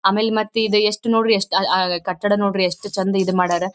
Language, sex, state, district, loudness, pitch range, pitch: Kannada, female, Karnataka, Dharwad, -19 LUFS, 185-210 Hz, 195 Hz